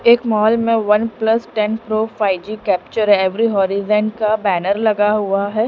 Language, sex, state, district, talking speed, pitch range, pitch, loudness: Hindi, female, Punjab, Pathankot, 180 wpm, 200-220 Hz, 215 Hz, -17 LUFS